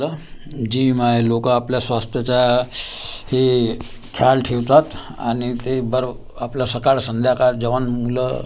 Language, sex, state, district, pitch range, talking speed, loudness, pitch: Marathi, male, Maharashtra, Gondia, 120-130 Hz, 115 wpm, -19 LUFS, 125 Hz